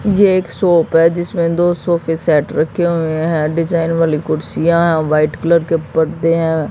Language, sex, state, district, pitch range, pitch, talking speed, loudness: Hindi, female, Haryana, Jhajjar, 160-170 Hz, 165 Hz, 180 wpm, -15 LUFS